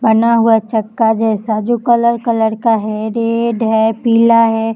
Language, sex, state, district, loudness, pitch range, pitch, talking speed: Hindi, female, Maharashtra, Chandrapur, -13 LUFS, 220-230 Hz, 225 Hz, 165 wpm